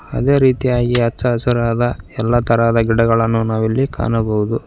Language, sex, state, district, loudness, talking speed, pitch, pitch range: Kannada, female, Karnataka, Koppal, -16 LUFS, 115 wpm, 115 Hz, 115-120 Hz